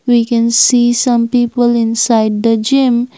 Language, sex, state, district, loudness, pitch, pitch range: English, female, Assam, Kamrup Metropolitan, -12 LUFS, 235 Hz, 230-245 Hz